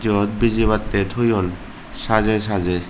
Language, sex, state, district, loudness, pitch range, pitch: Chakma, male, Tripura, Dhalai, -20 LUFS, 100-110 Hz, 105 Hz